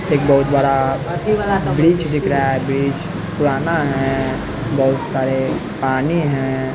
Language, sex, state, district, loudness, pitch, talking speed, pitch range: Hindi, male, Bihar, West Champaran, -17 LUFS, 140 Hz, 125 wpm, 135-160 Hz